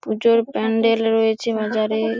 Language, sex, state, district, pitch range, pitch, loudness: Bengali, female, West Bengal, Paschim Medinipur, 220-230 Hz, 225 Hz, -19 LUFS